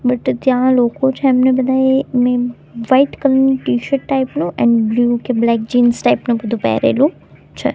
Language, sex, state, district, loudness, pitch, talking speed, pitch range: Gujarati, female, Gujarat, Gandhinagar, -15 LUFS, 255 Hz, 180 wpm, 240-265 Hz